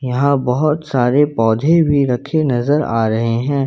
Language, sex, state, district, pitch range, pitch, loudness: Hindi, male, Jharkhand, Ranchi, 120-145 Hz, 135 Hz, -15 LUFS